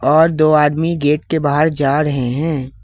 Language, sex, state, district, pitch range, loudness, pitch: Hindi, male, Jharkhand, Ranchi, 140-155 Hz, -15 LUFS, 150 Hz